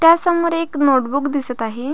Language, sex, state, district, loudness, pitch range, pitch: Marathi, female, Maharashtra, Pune, -17 LUFS, 265-330 Hz, 285 Hz